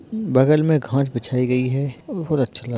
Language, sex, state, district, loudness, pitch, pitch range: Hindi, male, Maharashtra, Dhule, -20 LUFS, 135 Hz, 125-155 Hz